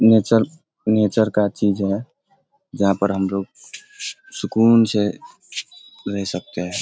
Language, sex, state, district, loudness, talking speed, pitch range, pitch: Hindi, male, Bihar, East Champaran, -20 LUFS, 115 wpm, 100-165 Hz, 110 Hz